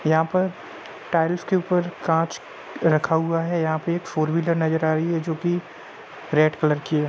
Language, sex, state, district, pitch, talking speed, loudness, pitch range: Hindi, male, Uttar Pradesh, Jalaun, 165 Hz, 205 wpm, -23 LUFS, 155-170 Hz